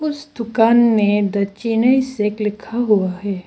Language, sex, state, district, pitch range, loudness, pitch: Hindi, female, Arunachal Pradesh, Lower Dibang Valley, 205-235 Hz, -17 LUFS, 220 Hz